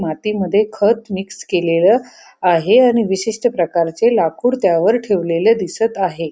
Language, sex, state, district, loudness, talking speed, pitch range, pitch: Marathi, female, Maharashtra, Pune, -16 LUFS, 125 wpm, 170-225 Hz, 195 Hz